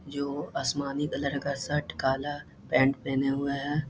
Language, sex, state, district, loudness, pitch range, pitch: Hindi, male, Bihar, Jahanabad, -29 LUFS, 135-145 Hz, 140 Hz